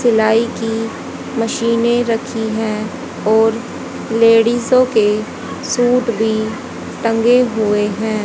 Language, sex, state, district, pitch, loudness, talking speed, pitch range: Hindi, female, Haryana, Jhajjar, 225 Hz, -16 LUFS, 95 wpm, 220-235 Hz